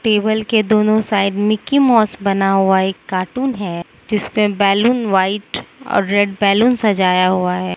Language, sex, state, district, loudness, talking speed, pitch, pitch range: Hindi, female, Mizoram, Aizawl, -15 LUFS, 160 wpm, 205 Hz, 190-215 Hz